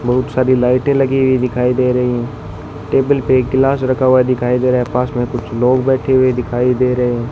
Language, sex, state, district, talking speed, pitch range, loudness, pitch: Hindi, male, Rajasthan, Bikaner, 240 wpm, 125-130 Hz, -14 LUFS, 125 Hz